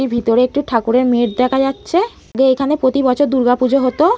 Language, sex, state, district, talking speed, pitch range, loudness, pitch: Bengali, female, West Bengal, Malda, 175 wpm, 250-280 Hz, -15 LUFS, 260 Hz